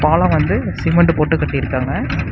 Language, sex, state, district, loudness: Tamil, male, Tamil Nadu, Namakkal, -16 LUFS